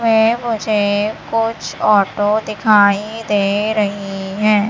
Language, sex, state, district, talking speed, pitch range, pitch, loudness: Hindi, male, Madhya Pradesh, Katni, 100 wpm, 205-220 Hz, 210 Hz, -16 LUFS